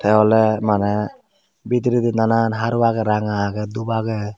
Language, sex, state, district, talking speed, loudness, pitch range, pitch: Chakma, male, Tripura, Dhalai, 150 wpm, -19 LUFS, 105-115 Hz, 110 Hz